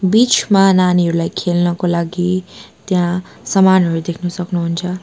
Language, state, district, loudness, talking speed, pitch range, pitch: Nepali, West Bengal, Darjeeling, -15 LUFS, 95 wpm, 175-185 Hz, 180 Hz